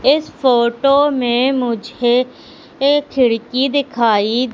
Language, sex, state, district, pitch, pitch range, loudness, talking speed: Hindi, female, Madhya Pradesh, Katni, 255 Hz, 240-275 Hz, -15 LUFS, 90 wpm